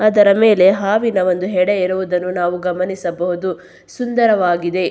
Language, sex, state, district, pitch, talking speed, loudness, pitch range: Kannada, female, Karnataka, Belgaum, 185 Hz, 110 wpm, -16 LUFS, 180-205 Hz